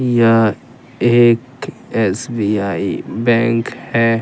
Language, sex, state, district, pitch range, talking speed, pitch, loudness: Hindi, male, Jharkhand, Deoghar, 110-120 Hz, 70 wpm, 115 Hz, -16 LUFS